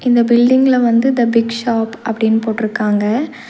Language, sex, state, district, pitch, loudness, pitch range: Tamil, female, Tamil Nadu, Nilgiris, 230 Hz, -14 LUFS, 225-245 Hz